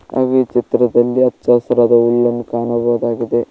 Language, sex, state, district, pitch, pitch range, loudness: Kannada, male, Karnataka, Koppal, 120 Hz, 120-125 Hz, -15 LUFS